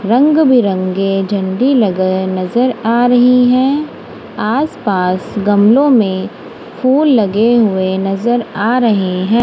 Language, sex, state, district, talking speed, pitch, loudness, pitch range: Hindi, female, Punjab, Kapurthala, 120 wpm, 225 Hz, -13 LUFS, 195-250 Hz